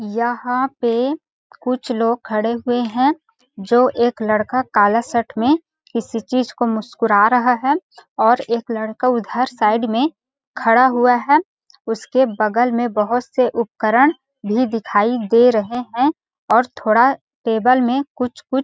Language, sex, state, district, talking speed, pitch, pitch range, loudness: Hindi, female, Chhattisgarh, Balrampur, 145 wpm, 245 Hz, 230-260 Hz, -18 LUFS